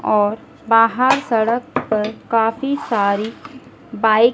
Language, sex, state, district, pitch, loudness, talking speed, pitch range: Hindi, female, Madhya Pradesh, Dhar, 225 Hz, -18 LUFS, 110 wpm, 215-250 Hz